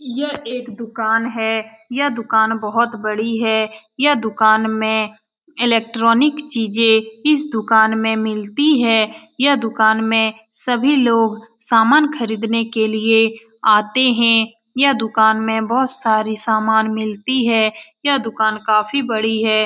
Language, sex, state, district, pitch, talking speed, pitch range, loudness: Hindi, female, Bihar, Saran, 225 Hz, 130 wpm, 220-245 Hz, -16 LUFS